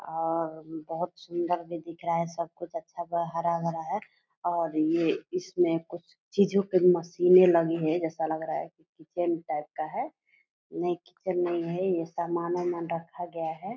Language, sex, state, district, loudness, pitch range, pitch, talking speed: Hindi, female, Bihar, Purnia, -29 LUFS, 165-175 Hz, 170 Hz, 175 wpm